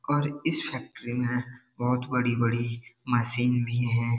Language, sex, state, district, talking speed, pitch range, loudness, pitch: Hindi, male, Bihar, Darbhanga, 130 wpm, 120-125 Hz, -28 LUFS, 120 Hz